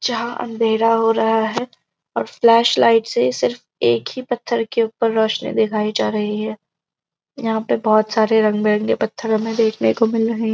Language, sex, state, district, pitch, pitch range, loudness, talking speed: Hindi, female, Uttarakhand, Uttarkashi, 220 Hz, 215-230 Hz, -18 LUFS, 190 wpm